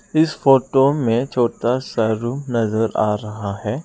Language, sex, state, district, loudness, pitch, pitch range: Hindi, male, Arunachal Pradesh, Lower Dibang Valley, -19 LUFS, 120 Hz, 110-135 Hz